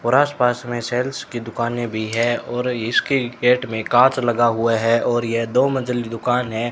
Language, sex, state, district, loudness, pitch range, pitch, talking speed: Hindi, male, Rajasthan, Bikaner, -20 LUFS, 115-125 Hz, 120 Hz, 195 wpm